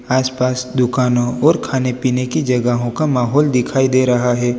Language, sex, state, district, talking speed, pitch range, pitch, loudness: Hindi, male, Gujarat, Valsad, 170 wpm, 125-130 Hz, 125 Hz, -16 LUFS